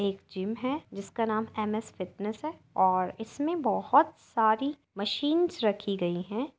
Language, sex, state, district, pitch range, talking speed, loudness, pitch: Hindi, female, Uttar Pradesh, Jyotiba Phule Nagar, 200-280 Hz, 145 wpm, -30 LUFS, 220 Hz